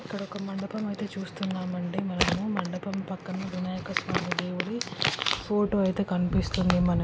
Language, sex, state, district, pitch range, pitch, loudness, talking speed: Telugu, male, Telangana, Karimnagar, 180-200 Hz, 190 Hz, -29 LUFS, 145 wpm